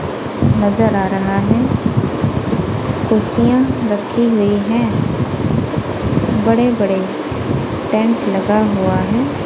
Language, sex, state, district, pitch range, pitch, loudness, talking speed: Hindi, female, Punjab, Kapurthala, 205-230 Hz, 210 Hz, -16 LUFS, 90 wpm